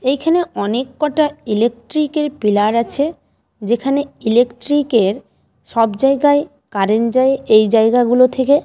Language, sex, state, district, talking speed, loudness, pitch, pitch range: Bengali, female, West Bengal, Malda, 110 wpm, -16 LUFS, 255 Hz, 230-290 Hz